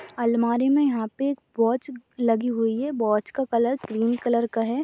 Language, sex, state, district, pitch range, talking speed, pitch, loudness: Hindi, female, Uttarakhand, Tehri Garhwal, 230-265 Hz, 200 wpm, 235 Hz, -24 LUFS